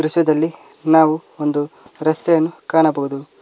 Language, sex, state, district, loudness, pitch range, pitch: Kannada, male, Karnataka, Koppal, -18 LUFS, 150-160 Hz, 155 Hz